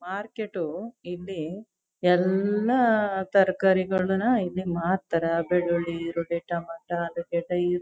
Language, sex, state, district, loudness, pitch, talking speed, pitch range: Kannada, female, Karnataka, Chamarajanagar, -26 LUFS, 180 Hz, 70 wpm, 170-195 Hz